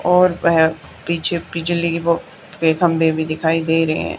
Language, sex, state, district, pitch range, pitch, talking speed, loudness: Hindi, female, Haryana, Charkhi Dadri, 160-170 Hz, 165 Hz, 145 wpm, -18 LUFS